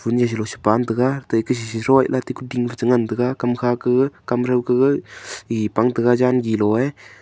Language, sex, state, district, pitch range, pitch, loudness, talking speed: Wancho, male, Arunachal Pradesh, Longding, 115-125 Hz, 125 Hz, -19 LUFS, 150 wpm